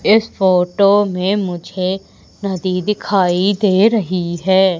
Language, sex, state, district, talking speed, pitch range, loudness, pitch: Hindi, female, Madhya Pradesh, Umaria, 110 wpm, 185-205 Hz, -16 LUFS, 190 Hz